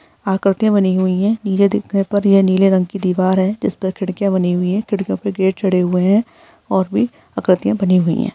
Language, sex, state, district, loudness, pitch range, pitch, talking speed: Hindi, female, Chhattisgarh, Rajnandgaon, -16 LUFS, 185-205 Hz, 195 Hz, 225 wpm